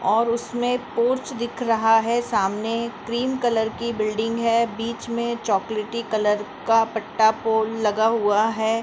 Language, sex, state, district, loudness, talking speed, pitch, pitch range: Hindi, female, Uttar Pradesh, Muzaffarnagar, -22 LUFS, 150 wpm, 225 Hz, 220-235 Hz